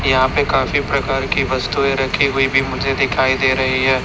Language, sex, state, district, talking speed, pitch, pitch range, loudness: Hindi, male, Chhattisgarh, Raipur, 205 wpm, 135 Hz, 130-135 Hz, -16 LUFS